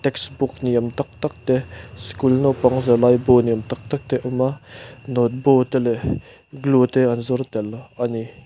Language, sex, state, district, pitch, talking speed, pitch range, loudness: Mizo, male, Mizoram, Aizawl, 125 Hz, 205 wpm, 120-135 Hz, -20 LUFS